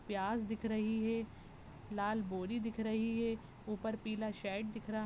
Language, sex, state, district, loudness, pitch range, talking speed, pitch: Hindi, female, Goa, North and South Goa, -39 LUFS, 210-225 Hz, 165 wpm, 220 Hz